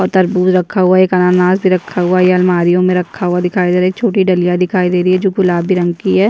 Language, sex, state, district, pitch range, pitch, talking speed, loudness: Hindi, female, Chhattisgarh, Jashpur, 180-185 Hz, 185 Hz, 305 wpm, -12 LUFS